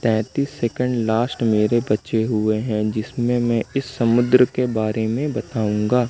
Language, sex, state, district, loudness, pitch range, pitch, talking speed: Hindi, male, Madhya Pradesh, Katni, -20 LUFS, 110-125 Hz, 115 Hz, 145 wpm